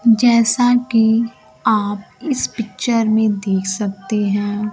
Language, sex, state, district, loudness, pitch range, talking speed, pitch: Hindi, female, Bihar, Kaimur, -17 LUFS, 205-230 Hz, 115 wpm, 220 Hz